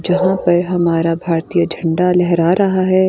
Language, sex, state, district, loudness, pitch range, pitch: Hindi, female, Himachal Pradesh, Shimla, -15 LUFS, 165-185 Hz, 175 Hz